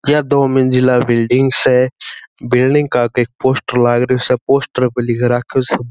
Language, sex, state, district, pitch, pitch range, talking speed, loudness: Marwari, male, Rajasthan, Churu, 125 Hz, 120-130 Hz, 160 wpm, -14 LUFS